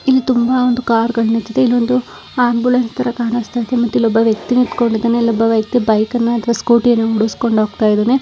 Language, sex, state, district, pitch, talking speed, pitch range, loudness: Kannada, female, Karnataka, Raichur, 235 Hz, 195 wpm, 225-245 Hz, -15 LUFS